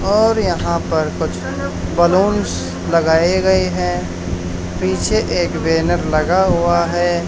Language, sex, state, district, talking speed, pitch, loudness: Hindi, male, Haryana, Charkhi Dadri, 115 wpm, 160 Hz, -17 LUFS